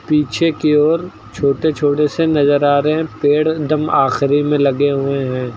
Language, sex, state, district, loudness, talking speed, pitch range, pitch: Hindi, male, Uttar Pradesh, Lucknow, -15 LUFS, 195 wpm, 140-155 Hz, 150 Hz